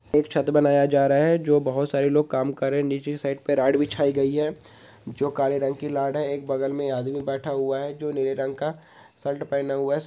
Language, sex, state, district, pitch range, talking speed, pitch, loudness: Hindi, male, Goa, North and South Goa, 135-145 Hz, 255 wpm, 140 Hz, -24 LUFS